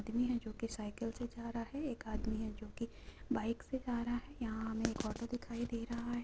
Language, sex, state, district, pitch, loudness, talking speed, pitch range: Hindi, female, West Bengal, Purulia, 235 Hz, -41 LUFS, 250 wpm, 225-240 Hz